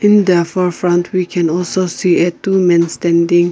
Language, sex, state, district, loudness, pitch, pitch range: English, female, Nagaland, Kohima, -14 LUFS, 175 Hz, 175-185 Hz